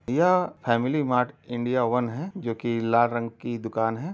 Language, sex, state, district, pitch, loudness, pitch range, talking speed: Hindi, male, Uttar Pradesh, Deoria, 120 Hz, -25 LUFS, 115-150 Hz, 175 wpm